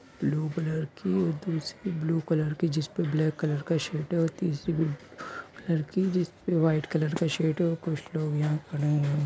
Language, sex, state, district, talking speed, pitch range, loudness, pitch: Hindi, female, Chhattisgarh, Raigarh, 190 wpm, 155-170 Hz, -29 LUFS, 160 Hz